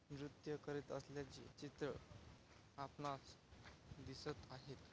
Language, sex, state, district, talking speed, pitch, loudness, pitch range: Marathi, male, Maharashtra, Chandrapur, 85 wpm, 135 Hz, -53 LUFS, 125-145 Hz